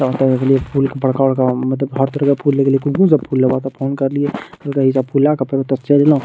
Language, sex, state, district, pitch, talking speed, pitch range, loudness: Maithili, male, Bihar, Madhepura, 135 Hz, 210 wpm, 130-140 Hz, -16 LUFS